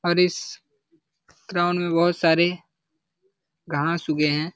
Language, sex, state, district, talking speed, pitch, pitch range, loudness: Hindi, male, Jharkhand, Jamtara, 120 wpm, 175 Hz, 160-180 Hz, -22 LUFS